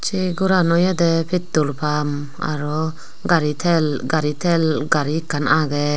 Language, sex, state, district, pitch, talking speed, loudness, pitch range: Chakma, female, Tripura, Unakoti, 155 Hz, 130 wpm, -19 LUFS, 150-170 Hz